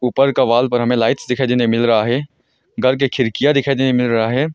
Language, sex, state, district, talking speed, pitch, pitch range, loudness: Hindi, male, Arunachal Pradesh, Longding, 250 wpm, 125 Hz, 120-135 Hz, -16 LUFS